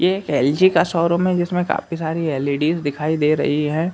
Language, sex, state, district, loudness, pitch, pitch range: Hindi, male, Uttar Pradesh, Hamirpur, -19 LUFS, 160 Hz, 150-175 Hz